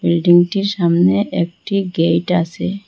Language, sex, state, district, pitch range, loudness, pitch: Bengali, female, Assam, Hailakandi, 170-185 Hz, -16 LUFS, 175 Hz